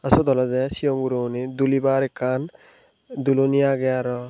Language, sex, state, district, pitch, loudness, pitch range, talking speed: Chakma, male, Tripura, Unakoti, 135 Hz, -22 LUFS, 125-135 Hz, 155 wpm